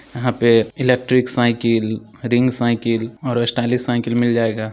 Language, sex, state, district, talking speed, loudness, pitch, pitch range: Maithili, male, Bihar, Samastipur, 140 wpm, -18 LUFS, 120 Hz, 115-125 Hz